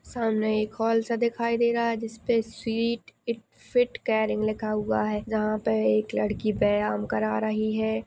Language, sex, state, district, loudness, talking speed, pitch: Hindi, female, Maharashtra, Pune, -26 LUFS, 185 wpm, 215 Hz